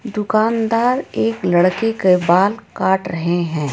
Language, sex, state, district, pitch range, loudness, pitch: Hindi, female, Jharkhand, Ranchi, 175-225 Hz, -17 LUFS, 190 Hz